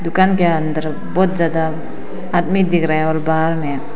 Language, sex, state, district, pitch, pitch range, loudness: Hindi, female, Arunachal Pradesh, Papum Pare, 165 Hz, 155-175 Hz, -17 LUFS